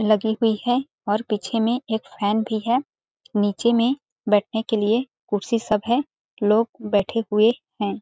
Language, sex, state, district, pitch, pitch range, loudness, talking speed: Hindi, female, Chhattisgarh, Balrampur, 220 Hz, 210-235 Hz, -22 LUFS, 165 wpm